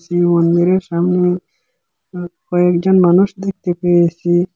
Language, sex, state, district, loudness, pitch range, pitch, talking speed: Bengali, male, Assam, Hailakandi, -14 LUFS, 175-185 Hz, 175 Hz, 90 wpm